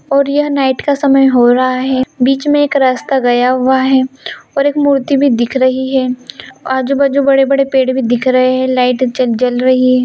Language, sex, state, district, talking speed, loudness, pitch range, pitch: Hindi, female, Bihar, Gopalganj, 205 wpm, -12 LUFS, 255-275 Hz, 260 Hz